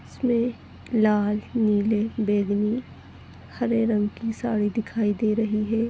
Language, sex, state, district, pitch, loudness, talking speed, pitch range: Hindi, female, Goa, North and South Goa, 220 Hz, -24 LUFS, 130 wpm, 210-230 Hz